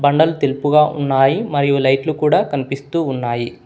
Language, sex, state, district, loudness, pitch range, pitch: Telugu, male, Telangana, Hyderabad, -16 LUFS, 135-150 Hz, 140 Hz